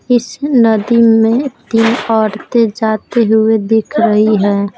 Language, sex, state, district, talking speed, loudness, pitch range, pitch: Hindi, female, Bihar, Patna, 125 wpm, -12 LUFS, 215-235 Hz, 225 Hz